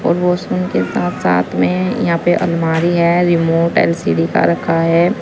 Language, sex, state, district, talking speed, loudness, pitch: Hindi, female, Uttar Pradesh, Saharanpur, 160 wpm, -15 LUFS, 165 Hz